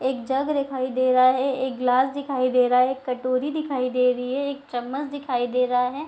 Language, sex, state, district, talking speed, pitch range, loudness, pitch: Hindi, female, Bihar, Sitamarhi, 235 wpm, 250-275 Hz, -23 LUFS, 255 Hz